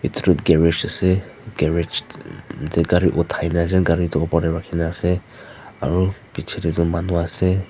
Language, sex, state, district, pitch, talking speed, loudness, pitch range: Nagamese, female, Nagaland, Dimapur, 85 Hz, 165 wpm, -20 LUFS, 85-90 Hz